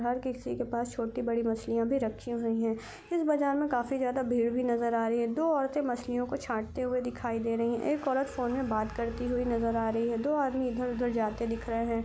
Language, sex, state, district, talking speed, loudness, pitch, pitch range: Hindi, female, Chhattisgarh, Rajnandgaon, 250 wpm, -31 LUFS, 245 Hz, 230-260 Hz